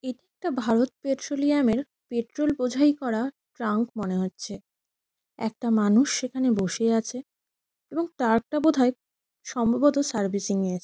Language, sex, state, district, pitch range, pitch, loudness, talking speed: Bengali, female, West Bengal, Kolkata, 225-275 Hz, 245 Hz, -25 LUFS, 140 wpm